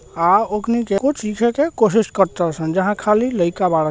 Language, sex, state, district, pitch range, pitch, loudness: Bhojpuri, male, Bihar, Gopalganj, 185-235 Hz, 210 Hz, -18 LUFS